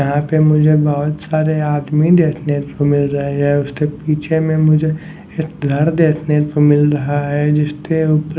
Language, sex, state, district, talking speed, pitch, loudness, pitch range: Hindi, male, Haryana, Jhajjar, 180 wpm, 150 Hz, -15 LUFS, 145-155 Hz